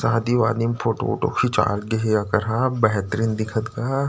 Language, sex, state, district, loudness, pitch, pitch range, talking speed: Chhattisgarhi, male, Chhattisgarh, Rajnandgaon, -22 LUFS, 115 Hz, 110-120 Hz, 190 wpm